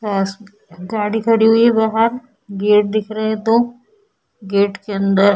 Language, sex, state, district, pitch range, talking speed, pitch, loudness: Hindi, female, Bihar, Vaishali, 200-225 Hz, 170 wpm, 215 Hz, -16 LUFS